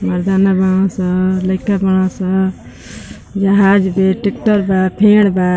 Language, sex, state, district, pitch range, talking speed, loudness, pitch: Bhojpuri, female, Uttar Pradesh, Ghazipur, 185-195 Hz, 130 wpm, -13 LUFS, 190 Hz